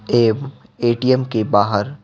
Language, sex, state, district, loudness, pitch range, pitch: Hindi, male, Bihar, Patna, -18 LUFS, 110-130 Hz, 120 Hz